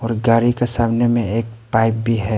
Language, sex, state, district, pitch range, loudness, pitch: Hindi, male, Arunachal Pradesh, Papum Pare, 115-120 Hz, -17 LUFS, 115 Hz